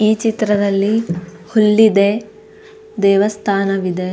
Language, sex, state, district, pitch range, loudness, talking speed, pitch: Kannada, female, Karnataka, Dakshina Kannada, 200-220 Hz, -15 LUFS, 75 wpm, 210 Hz